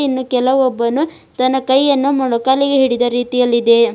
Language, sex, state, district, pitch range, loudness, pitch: Kannada, female, Karnataka, Bidar, 245-270 Hz, -15 LUFS, 260 Hz